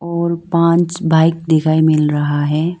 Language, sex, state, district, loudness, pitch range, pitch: Hindi, female, Arunachal Pradesh, Lower Dibang Valley, -15 LUFS, 155-170 Hz, 165 Hz